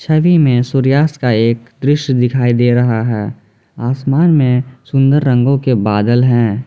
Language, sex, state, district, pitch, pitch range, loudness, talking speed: Hindi, male, Jharkhand, Ranchi, 125 Hz, 120-135 Hz, -13 LUFS, 155 wpm